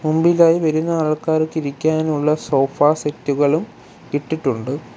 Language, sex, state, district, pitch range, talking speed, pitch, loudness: Malayalam, male, Kerala, Kollam, 145-160 Hz, 95 wpm, 155 Hz, -18 LUFS